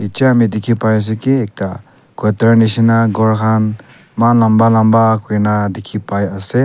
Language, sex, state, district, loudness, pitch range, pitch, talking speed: Nagamese, male, Nagaland, Kohima, -13 LUFS, 105-115 Hz, 110 Hz, 135 wpm